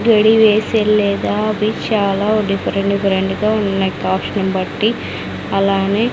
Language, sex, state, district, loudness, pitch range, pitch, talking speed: Telugu, female, Andhra Pradesh, Sri Satya Sai, -16 LUFS, 195-215 Hz, 205 Hz, 105 wpm